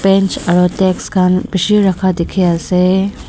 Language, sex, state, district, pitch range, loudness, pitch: Nagamese, female, Nagaland, Dimapur, 180-195 Hz, -13 LUFS, 185 Hz